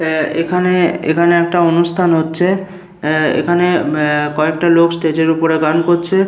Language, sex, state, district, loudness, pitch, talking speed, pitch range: Bengali, male, West Bengal, Paschim Medinipur, -14 LUFS, 170 Hz, 125 wpm, 160-175 Hz